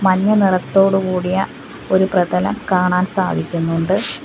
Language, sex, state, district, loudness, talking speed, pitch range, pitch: Malayalam, female, Kerala, Kollam, -17 LUFS, 85 wpm, 180-195 Hz, 185 Hz